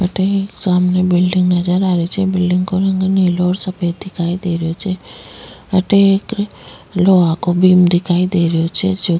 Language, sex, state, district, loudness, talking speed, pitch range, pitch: Rajasthani, female, Rajasthan, Nagaur, -15 LUFS, 180 wpm, 175-190 Hz, 185 Hz